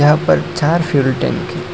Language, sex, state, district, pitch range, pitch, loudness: Hindi, male, Assam, Hailakandi, 140-170 Hz, 150 Hz, -15 LUFS